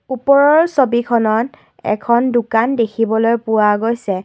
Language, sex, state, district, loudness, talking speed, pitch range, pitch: Assamese, female, Assam, Kamrup Metropolitan, -15 LUFS, 100 wpm, 220-250 Hz, 235 Hz